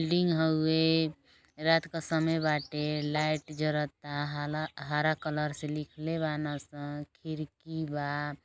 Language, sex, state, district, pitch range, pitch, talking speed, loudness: Bhojpuri, female, Uttar Pradesh, Gorakhpur, 150-160 Hz, 155 Hz, 120 wpm, -31 LUFS